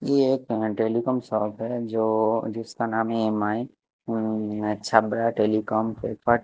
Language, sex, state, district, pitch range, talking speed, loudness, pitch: Hindi, male, Chandigarh, Chandigarh, 110-115 Hz, 140 wpm, -25 LUFS, 110 Hz